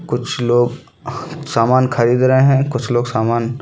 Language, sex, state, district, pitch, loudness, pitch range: Hindi, male, Chhattisgarh, Balrampur, 125 Hz, -15 LUFS, 120-130 Hz